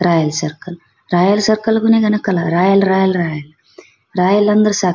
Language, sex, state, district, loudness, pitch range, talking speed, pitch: Kannada, female, Karnataka, Bellary, -14 LUFS, 170-210 Hz, 120 wpm, 185 Hz